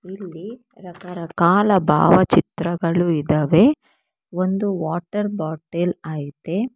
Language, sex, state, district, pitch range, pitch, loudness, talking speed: Kannada, female, Karnataka, Bangalore, 165-200 Hz, 175 Hz, -19 LUFS, 70 wpm